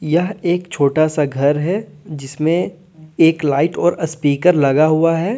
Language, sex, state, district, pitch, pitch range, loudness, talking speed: Hindi, male, Jharkhand, Deoghar, 160 Hz, 150-175 Hz, -16 LUFS, 155 wpm